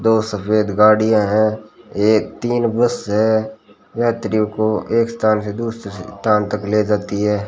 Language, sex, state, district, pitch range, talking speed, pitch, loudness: Hindi, male, Rajasthan, Bikaner, 105-110 Hz, 150 wpm, 110 Hz, -17 LUFS